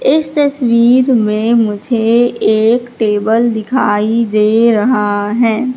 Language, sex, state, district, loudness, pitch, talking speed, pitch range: Hindi, female, Madhya Pradesh, Katni, -12 LUFS, 230 Hz, 105 wpm, 215-245 Hz